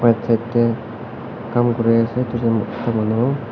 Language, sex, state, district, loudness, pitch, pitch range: Nagamese, male, Nagaland, Kohima, -19 LUFS, 115 Hz, 115-120 Hz